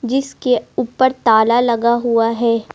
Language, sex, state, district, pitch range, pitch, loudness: Hindi, male, Uttar Pradesh, Lucknow, 230-250 Hz, 235 Hz, -16 LUFS